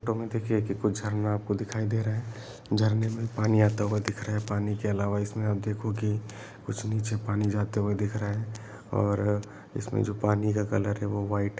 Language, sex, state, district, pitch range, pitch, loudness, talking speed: Hindi, male, Jharkhand, Sahebganj, 105-110 Hz, 105 Hz, -29 LUFS, 210 wpm